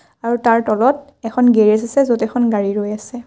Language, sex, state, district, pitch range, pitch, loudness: Assamese, female, Assam, Kamrup Metropolitan, 215-245 Hz, 230 Hz, -16 LUFS